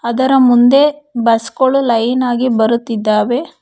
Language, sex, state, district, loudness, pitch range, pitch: Kannada, female, Karnataka, Bangalore, -13 LUFS, 230-260 Hz, 245 Hz